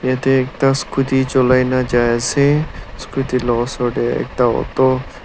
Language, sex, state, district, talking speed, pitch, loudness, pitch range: Nagamese, male, Nagaland, Dimapur, 150 wpm, 130 Hz, -16 LUFS, 125-135 Hz